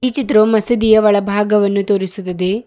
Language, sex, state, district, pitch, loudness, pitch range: Kannada, male, Karnataka, Bidar, 210 Hz, -14 LUFS, 200-220 Hz